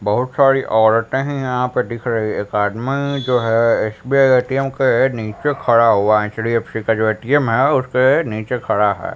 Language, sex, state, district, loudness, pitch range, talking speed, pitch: Hindi, male, Bihar, Patna, -17 LUFS, 110-135 Hz, 185 wpm, 120 Hz